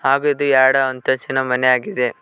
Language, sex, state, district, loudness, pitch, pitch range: Kannada, male, Karnataka, Koppal, -17 LUFS, 130 Hz, 130-135 Hz